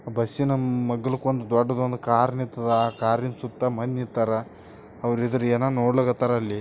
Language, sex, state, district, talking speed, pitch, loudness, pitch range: Kannada, male, Karnataka, Bijapur, 135 wpm, 120 Hz, -24 LUFS, 115-125 Hz